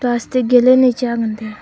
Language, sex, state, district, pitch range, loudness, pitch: Wancho, female, Arunachal Pradesh, Longding, 230-250 Hz, -14 LUFS, 245 Hz